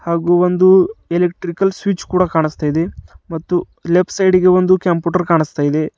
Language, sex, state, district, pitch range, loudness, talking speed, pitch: Kannada, male, Karnataka, Bidar, 165-185 Hz, -15 LUFS, 150 wpm, 175 Hz